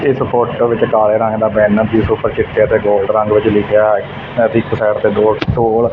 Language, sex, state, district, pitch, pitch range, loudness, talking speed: Punjabi, male, Punjab, Fazilka, 110 Hz, 105-115 Hz, -13 LUFS, 225 wpm